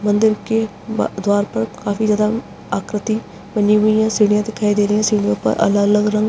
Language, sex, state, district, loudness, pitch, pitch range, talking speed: Hindi, female, Uttarakhand, Uttarkashi, -17 LUFS, 210 Hz, 205-215 Hz, 190 wpm